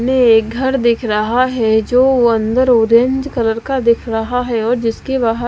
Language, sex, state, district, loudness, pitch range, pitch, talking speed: Hindi, female, Bihar, West Champaran, -14 LUFS, 225-255 Hz, 235 Hz, 185 wpm